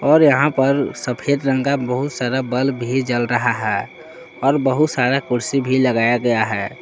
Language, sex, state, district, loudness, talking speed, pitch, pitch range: Hindi, male, Jharkhand, Palamu, -18 LUFS, 185 wpm, 130 Hz, 125-140 Hz